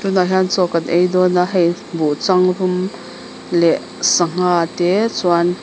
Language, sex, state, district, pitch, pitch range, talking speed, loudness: Mizo, female, Mizoram, Aizawl, 180 Hz, 175-185 Hz, 140 wpm, -16 LUFS